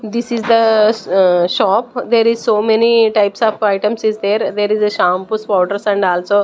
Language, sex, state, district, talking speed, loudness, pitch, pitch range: English, female, Chandigarh, Chandigarh, 185 wpm, -14 LUFS, 215 Hz, 200-225 Hz